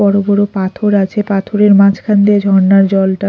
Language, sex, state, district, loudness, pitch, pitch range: Bengali, female, Odisha, Khordha, -11 LUFS, 200 Hz, 195-205 Hz